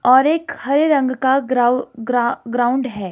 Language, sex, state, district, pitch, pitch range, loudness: Hindi, female, Himachal Pradesh, Shimla, 255 Hz, 240-270 Hz, -17 LUFS